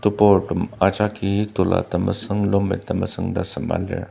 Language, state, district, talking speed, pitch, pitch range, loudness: Ao, Nagaland, Dimapur, 130 wpm, 100 Hz, 95-105 Hz, -21 LUFS